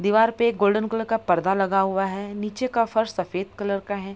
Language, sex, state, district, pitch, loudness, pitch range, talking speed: Hindi, female, Bihar, Madhepura, 205 Hz, -23 LUFS, 195-225 Hz, 245 wpm